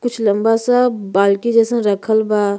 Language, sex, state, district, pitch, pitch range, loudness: Bhojpuri, female, Uttar Pradesh, Gorakhpur, 220 Hz, 205-235 Hz, -15 LUFS